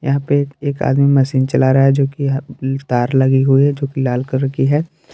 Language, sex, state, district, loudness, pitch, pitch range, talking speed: Hindi, male, Jharkhand, Palamu, -15 LUFS, 135 Hz, 135-140 Hz, 255 wpm